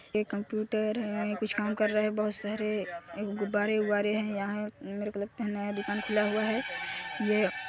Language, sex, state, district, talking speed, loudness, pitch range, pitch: Hindi, male, Chhattisgarh, Sarguja, 165 wpm, -31 LUFS, 205-215 Hz, 210 Hz